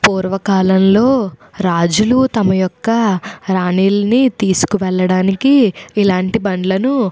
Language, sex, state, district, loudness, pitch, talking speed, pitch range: Telugu, female, Andhra Pradesh, Anantapur, -14 LUFS, 195 Hz, 75 wpm, 185-225 Hz